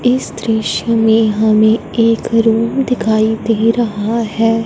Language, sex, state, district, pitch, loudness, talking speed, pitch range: Hindi, female, Punjab, Fazilka, 225 Hz, -14 LUFS, 130 wpm, 220-230 Hz